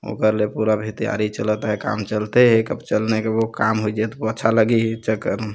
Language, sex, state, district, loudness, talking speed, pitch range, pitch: Chhattisgarhi, male, Chhattisgarh, Jashpur, -20 LUFS, 250 wpm, 105-110 Hz, 110 Hz